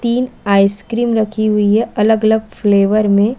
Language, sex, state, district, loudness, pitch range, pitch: Hindi, female, Chhattisgarh, Balrampur, -14 LUFS, 205-225 Hz, 215 Hz